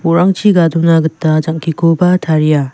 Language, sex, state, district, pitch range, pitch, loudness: Garo, female, Meghalaya, West Garo Hills, 160-175 Hz, 165 Hz, -12 LUFS